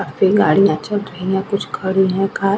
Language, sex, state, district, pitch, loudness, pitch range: Hindi, female, Bihar, Vaishali, 195 Hz, -17 LUFS, 190-200 Hz